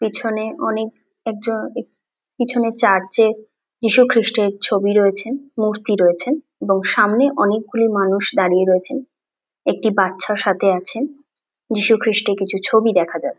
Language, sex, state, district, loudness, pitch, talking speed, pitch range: Bengali, female, West Bengal, Dakshin Dinajpur, -18 LUFS, 220 Hz, 130 wpm, 200-230 Hz